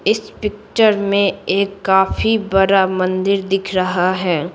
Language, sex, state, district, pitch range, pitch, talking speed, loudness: Hindi, female, Bihar, Patna, 185-205 Hz, 195 Hz, 130 wpm, -16 LUFS